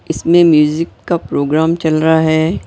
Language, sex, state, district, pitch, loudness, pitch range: Hindi, female, Maharashtra, Mumbai Suburban, 160 Hz, -13 LUFS, 155-165 Hz